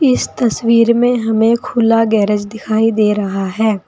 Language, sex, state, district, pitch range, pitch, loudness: Hindi, female, Uttar Pradesh, Saharanpur, 215-235 Hz, 225 Hz, -14 LUFS